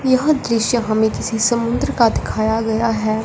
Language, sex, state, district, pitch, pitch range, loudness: Hindi, male, Punjab, Fazilka, 230 Hz, 220-240 Hz, -17 LUFS